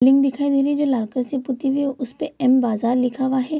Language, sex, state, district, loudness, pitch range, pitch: Hindi, female, Bihar, Kishanganj, -20 LUFS, 250-275 Hz, 260 Hz